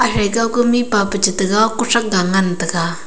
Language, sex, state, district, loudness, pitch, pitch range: Wancho, female, Arunachal Pradesh, Longding, -16 LUFS, 200 Hz, 185-230 Hz